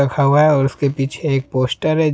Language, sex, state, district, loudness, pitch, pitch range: Hindi, male, Jharkhand, Deoghar, -17 LUFS, 140 Hz, 135-150 Hz